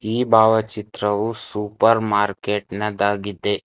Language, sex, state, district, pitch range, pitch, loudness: Kannada, male, Karnataka, Bangalore, 105-110 Hz, 105 Hz, -20 LUFS